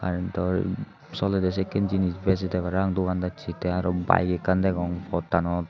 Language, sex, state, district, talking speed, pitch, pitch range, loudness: Chakma, male, Tripura, Unakoti, 170 wpm, 90 Hz, 90-95 Hz, -26 LUFS